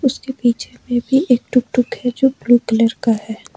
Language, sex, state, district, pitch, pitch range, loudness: Hindi, female, Jharkhand, Ranchi, 245 Hz, 235-260 Hz, -17 LUFS